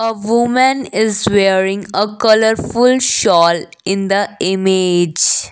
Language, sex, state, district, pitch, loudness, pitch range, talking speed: English, female, Assam, Kamrup Metropolitan, 205 Hz, -13 LUFS, 190-225 Hz, 110 wpm